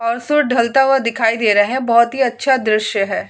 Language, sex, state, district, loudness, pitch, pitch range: Hindi, female, Uttar Pradesh, Hamirpur, -15 LUFS, 235 Hz, 225-265 Hz